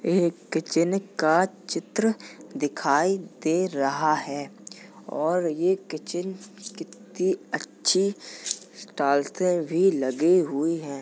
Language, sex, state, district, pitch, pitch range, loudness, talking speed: Hindi, male, Uttar Pradesh, Jalaun, 175 Hz, 155-190 Hz, -25 LUFS, 100 wpm